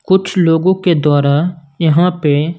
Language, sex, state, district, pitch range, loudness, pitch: Hindi, male, Punjab, Kapurthala, 150-180 Hz, -13 LUFS, 165 Hz